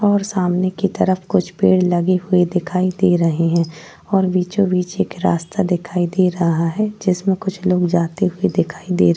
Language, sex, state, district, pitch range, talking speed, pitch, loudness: Hindi, female, Uttar Pradesh, Jyotiba Phule Nagar, 175-190 Hz, 190 wpm, 180 Hz, -18 LUFS